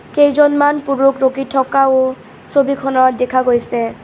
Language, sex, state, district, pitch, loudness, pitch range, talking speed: Assamese, female, Assam, Kamrup Metropolitan, 270 Hz, -14 LUFS, 255-280 Hz, 105 wpm